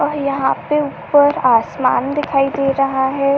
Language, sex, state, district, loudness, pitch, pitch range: Hindi, female, Uttar Pradesh, Ghazipur, -16 LUFS, 275 Hz, 275-290 Hz